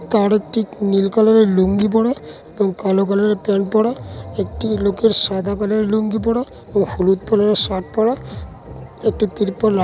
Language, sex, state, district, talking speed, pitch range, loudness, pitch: Bengali, male, West Bengal, Dakshin Dinajpur, 175 wpm, 195-220 Hz, -17 LUFS, 210 Hz